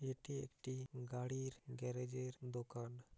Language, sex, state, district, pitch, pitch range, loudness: Bengali, male, West Bengal, Paschim Medinipur, 125 Hz, 125-130 Hz, -47 LUFS